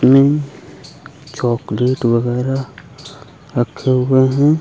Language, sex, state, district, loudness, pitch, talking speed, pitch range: Hindi, male, Uttar Pradesh, Lucknow, -16 LUFS, 130 Hz, 80 wpm, 125-145 Hz